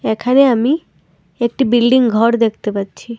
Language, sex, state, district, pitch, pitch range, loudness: Bengali, female, Tripura, Dhalai, 235 Hz, 225-255 Hz, -14 LUFS